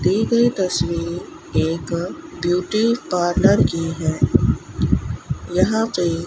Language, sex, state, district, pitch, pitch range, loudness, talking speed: Hindi, female, Rajasthan, Bikaner, 175 Hz, 165-190 Hz, -20 LUFS, 105 wpm